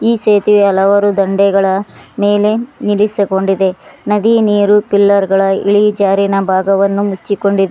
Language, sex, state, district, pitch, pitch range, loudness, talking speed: Kannada, female, Karnataka, Koppal, 200 Hz, 195-210 Hz, -12 LUFS, 110 wpm